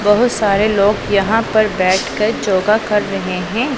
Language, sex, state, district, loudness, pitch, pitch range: Hindi, female, Punjab, Pathankot, -15 LUFS, 210 Hz, 195-220 Hz